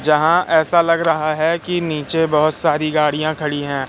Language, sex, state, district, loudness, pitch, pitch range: Hindi, male, Madhya Pradesh, Katni, -17 LUFS, 155 Hz, 150-165 Hz